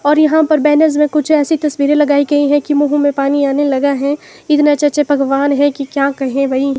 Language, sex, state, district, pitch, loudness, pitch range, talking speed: Hindi, female, Himachal Pradesh, Shimla, 290 Hz, -13 LUFS, 280-295 Hz, 240 wpm